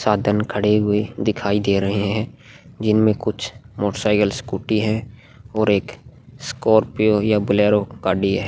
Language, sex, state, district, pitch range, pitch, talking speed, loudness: Hindi, male, Goa, North and South Goa, 105-110 Hz, 105 Hz, 140 wpm, -20 LUFS